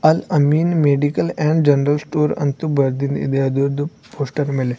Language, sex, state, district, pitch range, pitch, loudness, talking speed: Kannada, male, Karnataka, Bidar, 140-155 Hz, 145 Hz, -18 LUFS, 165 wpm